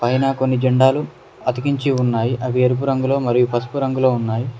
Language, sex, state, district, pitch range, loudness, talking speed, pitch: Telugu, male, Telangana, Mahabubabad, 125-135 Hz, -18 LUFS, 155 wpm, 130 Hz